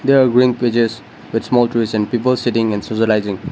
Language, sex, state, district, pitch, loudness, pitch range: English, male, Nagaland, Dimapur, 115 Hz, -16 LUFS, 110-125 Hz